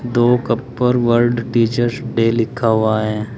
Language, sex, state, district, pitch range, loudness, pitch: Hindi, male, Uttar Pradesh, Saharanpur, 115-120 Hz, -17 LUFS, 120 Hz